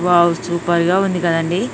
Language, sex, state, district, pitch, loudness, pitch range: Telugu, female, Telangana, Nalgonda, 170 Hz, -17 LUFS, 170-180 Hz